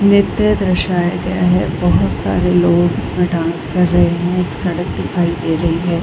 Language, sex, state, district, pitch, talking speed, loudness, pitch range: Hindi, female, Bihar, Saran, 175 Hz, 180 wpm, -15 LUFS, 170-180 Hz